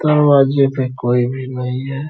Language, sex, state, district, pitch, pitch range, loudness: Hindi, male, Bihar, Araria, 135 Hz, 125-140 Hz, -16 LUFS